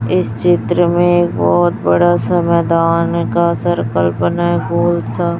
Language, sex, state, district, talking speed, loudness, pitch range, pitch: Hindi, female, Chhattisgarh, Raipur, 145 wpm, -14 LUFS, 110-175 Hz, 170 Hz